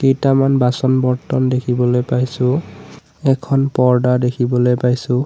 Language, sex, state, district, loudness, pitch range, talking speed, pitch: Assamese, male, Assam, Sonitpur, -16 LUFS, 125-135 Hz, 100 wpm, 125 Hz